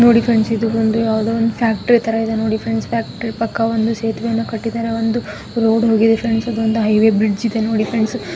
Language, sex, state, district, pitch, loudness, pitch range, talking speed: Kannada, female, Karnataka, Gulbarga, 225 Hz, -17 LUFS, 220-230 Hz, 200 wpm